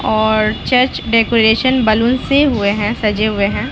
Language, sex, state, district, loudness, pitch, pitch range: Hindi, female, Bihar, Lakhisarai, -14 LUFS, 220 Hz, 215-250 Hz